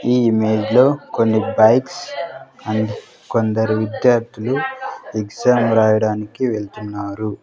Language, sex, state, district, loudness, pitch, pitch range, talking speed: Telugu, male, Andhra Pradesh, Sri Satya Sai, -18 LUFS, 110 Hz, 110-125 Hz, 90 wpm